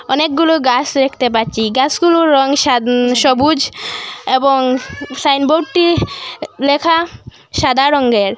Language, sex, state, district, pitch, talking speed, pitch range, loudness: Bengali, female, Assam, Hailakandi, 275 Hz, 100 wpm, 255-305 Hz, -13 LUFS